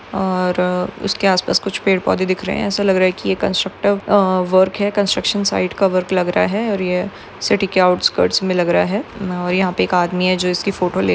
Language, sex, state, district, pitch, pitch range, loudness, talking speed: Hindi, female, Maharashtra, Solapur, 185 Hz, 180-195 Hz, -17 LUFS, 220 wpm